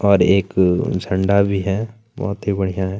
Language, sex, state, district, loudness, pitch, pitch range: Hindi, male, Chhattisgarh, Kabirdham, -18 LUFS, 100 Hz, 95-100 Hz